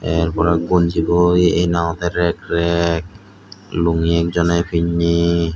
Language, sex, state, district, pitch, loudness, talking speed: Chakma, male, Tripura, Dhalai, 85 Hz, -17 LUFS, 120 wpm